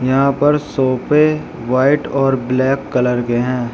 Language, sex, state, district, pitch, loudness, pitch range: Hindi, male, Uttar Pradesh, Shamli, 130 Hz, -16 LUFS, 125-140 Hz